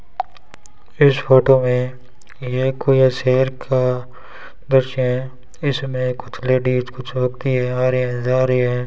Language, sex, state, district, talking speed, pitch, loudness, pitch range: Hindi, male, Rajasthan, Bikaner, 140 wpm, 130 Hz, -18 LUFS, 125-130 Hz